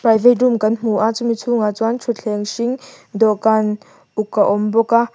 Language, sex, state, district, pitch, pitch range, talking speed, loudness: Mizo, female, Mizoram, Aizawl, 225 Hz, 215-235 Hz, 185 wpm, -17 LUFS